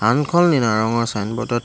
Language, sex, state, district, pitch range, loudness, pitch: Assamese, male, Assam, Hailakandi, 110-140 Hz, -18 LUFS, 120 Hz